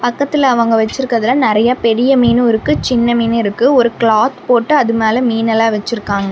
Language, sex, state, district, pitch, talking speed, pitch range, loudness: Tamil, female, Tamil Nadu, Namakkal, 235 Hz, 170 wpm, 225-250 Hz, -13 LUFS